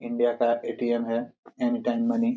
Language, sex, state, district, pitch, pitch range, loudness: Hindi, male, Jharkhand, Jamtara, 120 Hz, 120-125 Hz, -26 LUFS